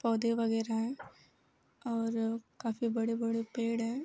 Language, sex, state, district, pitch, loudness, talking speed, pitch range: Hindi, female, Bihar, Gopalganj, 230 Hz, -34 LUFS, 150 wpm, 225-230 Hz